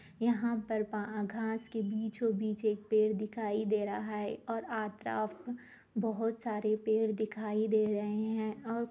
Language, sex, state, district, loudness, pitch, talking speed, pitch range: Hindi, female, Jharkhand, Sahebganj, -34 LUFS, 220 Hz, 140 wpm, 215-225 Hz